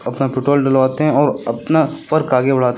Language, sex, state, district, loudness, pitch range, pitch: Hindi, male, Uttar Pradesh, Lucknow, -16 LUFS, 125-150 Hz, 135 Hz